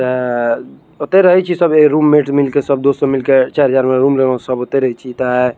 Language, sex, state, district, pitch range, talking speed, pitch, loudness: Maithili, male, Bihar, Araria, 125-145 Hz, 195 wpm, 135 Hz, -13 LUFS